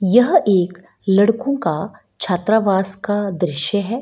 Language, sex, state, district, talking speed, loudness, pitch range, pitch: Hindi, female, Bihar, Gaya, 120 wpm, -18 LUFS, 180-215 Hz, 200 Hz